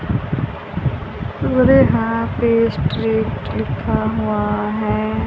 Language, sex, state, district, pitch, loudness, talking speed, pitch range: Hindi, female, Haryana, Charkhi Dadri, 110 Hz, -18 LUFS, 35 wpm, 105-115 Hz